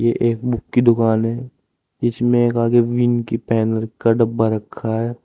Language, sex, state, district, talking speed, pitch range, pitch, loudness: Hindi, male, Uttar Pradesh, Saharanpur, 170 wpm, 110-120 Hz, 115 Hz, -18 LUFS